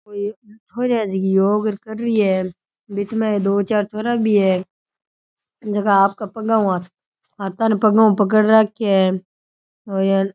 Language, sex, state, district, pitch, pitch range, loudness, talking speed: Rajasthani, male, Rajasthan, Nagaur, 205 Hz, 195-220 Hz, -18 LUFS, 175 wpm